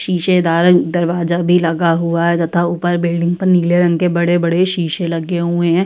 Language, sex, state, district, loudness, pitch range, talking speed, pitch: Hindi, female, Uttar Pradesh, Budaun, -15 LUFS, 170-175 Hz, 195 wpm, 175 Hz